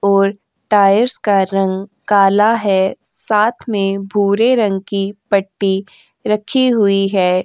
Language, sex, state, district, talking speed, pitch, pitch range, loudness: Hindi, female, Uttar Pradesh, Jyotiba Phule Nagar, 120 wpm, 200 Hz, 195-210 Hz, -15 LUFS